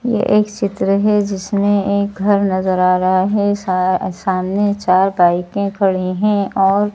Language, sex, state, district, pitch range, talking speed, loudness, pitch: Hindi, female, Madhya Pradesh, Bhopal, 185-205 Hz, 155 wpm, -16 LUFS, 195 Hz